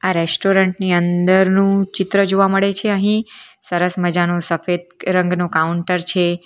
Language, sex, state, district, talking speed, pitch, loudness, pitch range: Gujarati, female, Gujarat, Valsad, 140 wpm, 180 Hz, -17 LUFS, 175-195 Hz